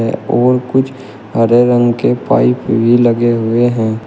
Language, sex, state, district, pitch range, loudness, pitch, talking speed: Hindi, male, Uttar Pradesh, Shamli, 110-120 Hz, -12 LUFS, 120 Hz, 160 wpm